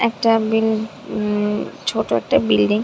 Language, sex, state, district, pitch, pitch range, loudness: Bengali, female, West Bengal, Dakshin Dinajpur, 220 Hz, 210-225 Hz, -19 LUFS